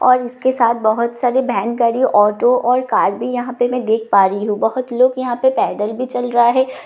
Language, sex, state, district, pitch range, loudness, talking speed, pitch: Hindi, female, Bihar, Katihar, 230-255 Hz, -16 LUFS, 235 wpm, 245 Hz